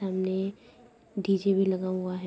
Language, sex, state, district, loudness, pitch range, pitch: Hindi, female, Uttar Pradesh, Budaun, -28 LUFS, 185-200 Hz, 195 Hz